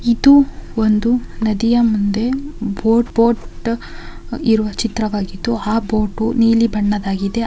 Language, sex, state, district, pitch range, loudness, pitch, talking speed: Kannada, female, Karnataka, Mysore, 210-235 Hz, -17 LUFS, 230 Hz, 240 wpm